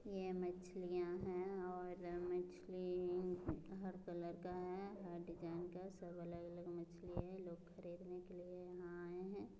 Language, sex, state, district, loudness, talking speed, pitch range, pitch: Hindi, female, Bihar, Muzaffarpur, -49 LUFS, 150 wpm, 175-185 Hz, 180 Hz